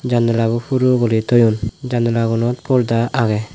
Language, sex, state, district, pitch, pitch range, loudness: Chakma, male, Tripura, West Tripura, 115 Hz, 115-125 Hz, -17 LUFS